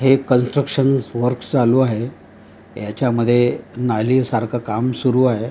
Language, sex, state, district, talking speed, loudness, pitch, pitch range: Marathi, male, Maharashtra, Gondia, 120 wpm, -18 LUFS, 125 Hz, 115-130 Hz